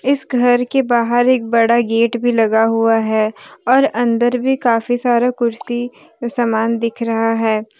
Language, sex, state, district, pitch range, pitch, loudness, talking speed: Hindi, female, Jharkhand, Deoghar, 225-245 Hz, 235 Hz, -16 LUFS, 160 wpm